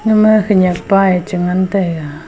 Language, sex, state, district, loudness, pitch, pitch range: Wancho, female, Arunachal Pradesh, Longding, -13 LUFS, 185 Hz, 180-200 Hz